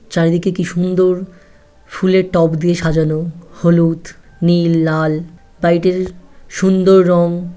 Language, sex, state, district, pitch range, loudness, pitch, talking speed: Bengali, female, West Bengal, North 24 Parganas, 165-185 Hz, -14 LUFS, 175 Hz, 110 wpm